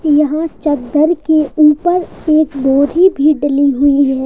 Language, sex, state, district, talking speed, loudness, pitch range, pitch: Hindi, male, Uttar Pradesh, Lalitpur, 140 wpm, -12 LUFS, 280-315 Hz, 300 Hz